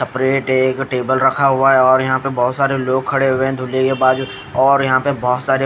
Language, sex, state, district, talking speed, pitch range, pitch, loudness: Hindi, female, Odisha, Khordha, 220 wpm, 130-135 Hz, 130 Hz, -15 LUFS